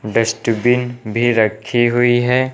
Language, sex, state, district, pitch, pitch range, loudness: Hindi, male, Uttar Pradesh, Lucknow, 120 Hz, 115-120 Hz, -16 LUFS